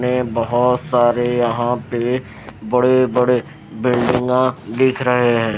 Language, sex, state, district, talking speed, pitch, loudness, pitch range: Hindi, male, Maharashtra, Mumbai Suburban, 110 wpm, 125 Hz, -17 LUFS, 120-125 Hz